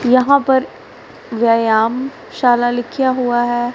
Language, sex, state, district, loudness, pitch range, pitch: Hindi, female, Punjab, Fazilka, -15 LUFS, 240-260 Hz, 245 Hz